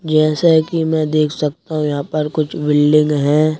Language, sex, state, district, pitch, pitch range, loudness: Hindi, male, Madhya Pradesh, Bhopal, 155 Hz, 150-155 Hz, -16 LUFS